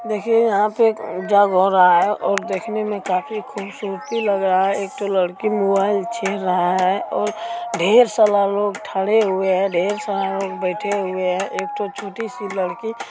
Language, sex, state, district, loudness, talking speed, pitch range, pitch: Maithili, female, Bihar, Supaul, -19 LUFS, 180 wpm, 190-215 Hz, 200 Hz